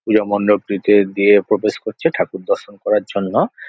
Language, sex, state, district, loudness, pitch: Bengali, male, West Bengal, Jhargram, -17 LUFS, 105 Hz